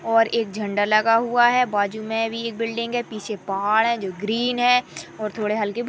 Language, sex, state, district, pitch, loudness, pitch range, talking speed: Hindi, female, Uttarakhand, Tehri Garhwal, 225 Hz, -22 LUFS, 210-235 Hz, 235 wpm